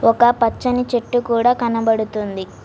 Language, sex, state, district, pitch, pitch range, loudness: Telugu, female, Telangana, Mahabubabad, 235 Hz, 225-245 Hz, -18 LUFS